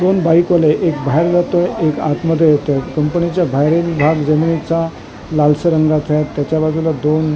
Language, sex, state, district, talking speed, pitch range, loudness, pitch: Marathi, male, Maharashtra, Mumbai Suburban, 180 wpm, 150-170 Hz, -15 LUFS, 155 Hz